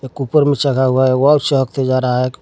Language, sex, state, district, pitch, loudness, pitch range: Hindi, male, Jharkhand, Garhwa, 130 Hz, -14 LUFS, 130-140 Hz